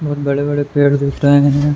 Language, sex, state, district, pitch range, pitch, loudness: Hindi, male, Uttar Pradesh, Hamirpur, 140-145 Hz, 145 Hz, -14 LUFS